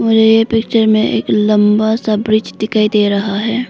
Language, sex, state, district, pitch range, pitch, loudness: Hindi, female, Arunachal Pradesh, Lower Dibang Valley, 210-225 Hz, 215 Hz, -13 LUFS